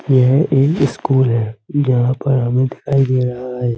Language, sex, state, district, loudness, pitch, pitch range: Hindi, male, Uttar Pradesh, Budaun, -16 LUFS, 130 Hz, 125-140 Hz